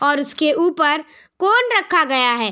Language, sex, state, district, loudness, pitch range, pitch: Hindi, female, Bihar, Araria, -16 LUFS, 285-355 Hz, 305 Hz